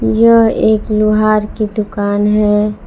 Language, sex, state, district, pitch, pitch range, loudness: Hindi, female, Jharkhand, Palamu, 215 Hz, 210-215 Hz, -12 LUFS